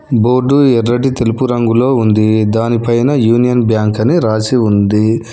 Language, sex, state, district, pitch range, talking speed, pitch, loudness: Telugu, male, Telangana, Hyderabad, 110-125 Hz, 125 wpm, 115 Hz, -12 LUFS